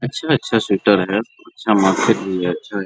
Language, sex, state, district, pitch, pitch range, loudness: Hindi, male, Bihar, Araria, 105 Hz, 95-115 Hz, -17 LUFS